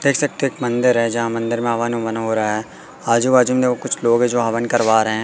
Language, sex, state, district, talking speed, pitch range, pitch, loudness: Hindi, male, Madhya Pradesh, Katni, 275 wpm, 115-125 Hz, 120 Hz, -18 LUFS